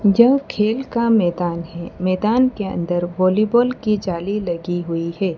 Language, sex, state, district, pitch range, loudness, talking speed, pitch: Hindi, female, Gujarat, Valsad, 175-225 Hz, -19 LUFS, 155 wpm, 190 Hz